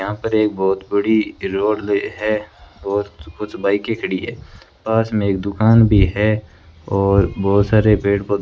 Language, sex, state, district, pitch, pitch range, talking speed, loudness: Hindi, male, Rajasthan, Bikaner, 100 Hz, 95-110 Hz, 170 wpm, -18 LUFS